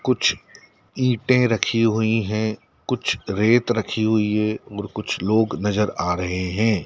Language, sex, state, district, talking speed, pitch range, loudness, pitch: Hindi, male, Madhya Pradesh, Dhar, 70 wpm, 105-115 Hz, -21 LUFS, 110 Hz